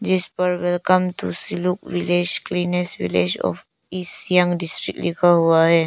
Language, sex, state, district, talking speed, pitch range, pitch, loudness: Hindi, female, Arunachal Pradesh, Lower Dibang Valley, 155 wpm, 170-180 Hz, 175 Hz, -20 LUFS